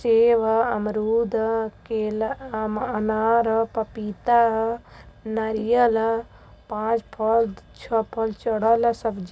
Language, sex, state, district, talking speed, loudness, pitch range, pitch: Hindi, female, Uttar Pradesh, Varanasi, 120 wpm, -23 LUFS, 220-230 Hz, 225 Hz